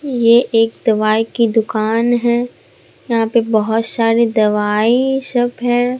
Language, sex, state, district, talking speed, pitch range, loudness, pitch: Hindi, male, Bihar, Katihar, 130 wpm, 225-245 Hz, -15 LUFS, 230 Hz